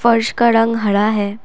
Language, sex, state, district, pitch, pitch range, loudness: Hindi, female, Assam, Kamrup Metropolitan, 225 Hz, 210-235 Hz, -15 LUFS